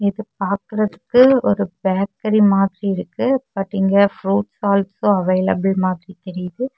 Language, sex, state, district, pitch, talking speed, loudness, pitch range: Tamil, female, Tamil Nadu, Kanyakumari, 200 Hz, 115 wpm, -18 LUFS, 190-215 Hz